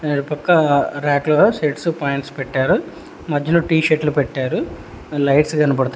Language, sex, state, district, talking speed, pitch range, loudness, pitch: Telugu, male, Telangana, Hyderabad, 120 wpm, 140-155 Hz, -18 LUFS, 145 Hz